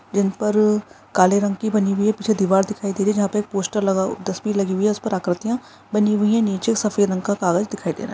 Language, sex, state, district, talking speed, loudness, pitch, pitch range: Hindi, female, Maharashtra, Pune, 285 wpm, -20 LUFS, 205 Hz, 195-210 Hz